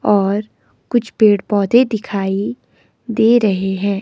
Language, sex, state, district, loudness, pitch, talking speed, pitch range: Hindi, female, Himachal Pradesh, Shimla, -16 LUFS, 210 Hz, 120 wpm, 200-230 Hz